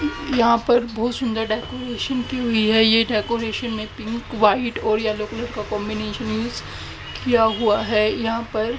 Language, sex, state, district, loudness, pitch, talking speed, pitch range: Hindi, female, Haryana, Jhajjar, -21 LUFS, 225 Hz, 165 wpm, 215-240 Hz